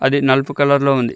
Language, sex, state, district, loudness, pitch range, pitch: Telugu, male, Telangana, Mahabubabad, -15 LUFS, 130-140 Hz, 135 Hz